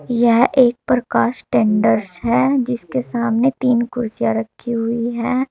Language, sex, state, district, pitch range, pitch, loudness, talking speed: Hindi, female, Uttar Pradesh, Saharanpur, 230-250 Hz, 240 Hz, -17 LUFS, 130 wpm